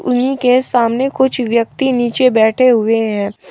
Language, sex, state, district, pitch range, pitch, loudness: Hindi, male, Uttar Pradesh, Shamli, 230-260 Hz, 245 Hz, -14 LUFS